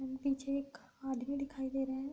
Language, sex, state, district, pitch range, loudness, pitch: Hindi, female, Uttar Pradesh, Deoria, 265-275 Hz, -39 LUFS, 270 Hz